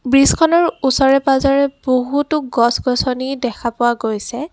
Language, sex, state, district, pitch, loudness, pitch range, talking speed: Assamese, female, Assam, Kamrup Metropolitan, 265 Hz, -16 LUFS, 245-280 Hz, 105 wpm